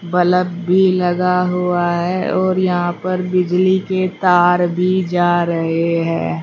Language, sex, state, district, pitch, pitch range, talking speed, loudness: Hindi, female, Uttar Pradesh, Shamli, 180 Hz, 175-185 Hz, 140 wpm, -16 LUFS